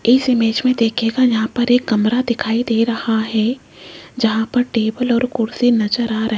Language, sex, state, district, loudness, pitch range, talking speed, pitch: Hindi, female, Rajasthan, Jaipur, -17 LUFS, 220-245 Hz, 195 wpm, 230 Hz